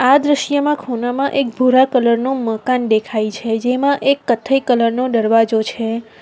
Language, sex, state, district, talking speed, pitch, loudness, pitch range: Gujarati, female, Gujarat, Valsad, 165 wpm, 250 Hz, -16 LUFS, 225-270 Hz